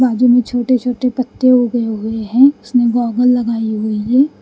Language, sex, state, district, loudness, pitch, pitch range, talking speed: Hindi, female, Haryana, Rohtak, -14 LUFS, 245 Hz, 230-255 Hz, 175 wpm